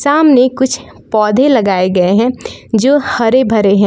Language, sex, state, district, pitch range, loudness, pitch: Hindi, female, Jharkhand, Palamu, 210-265 Hz, -11 LUFS, 240 Hz